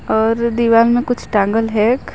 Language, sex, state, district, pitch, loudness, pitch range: Hindi, female, Chhattisgarh, Jashpur, 230 Hz, -15 LUFS, 220-235 Hz